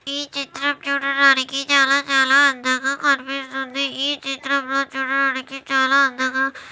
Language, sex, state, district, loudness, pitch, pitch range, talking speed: Telugu, female, Andhra Pradesh, Anantapur, -19 LUFS, 275 Hz, 270-280 Hz, 125 wpm